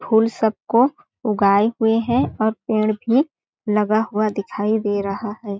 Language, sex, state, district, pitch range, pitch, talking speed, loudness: Hindi, female, Chhattisgarh, Balrampur, 210-225 Hz, 215 Hz, 160 wpm, -20 LUFS